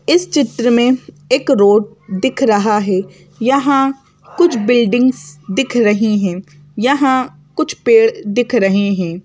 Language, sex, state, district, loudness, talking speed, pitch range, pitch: Hindi, female, Madhya Pradesh, Bhopal, -14 LUFS, 130 wpm, 200-270 Hz, 235 Hz